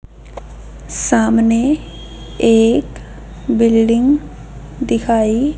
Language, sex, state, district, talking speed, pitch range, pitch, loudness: Hindi, female, Haryana, Charkhi Dadri, 45 wpm, 225-270 Hz, 230 Hz, -14 LUFS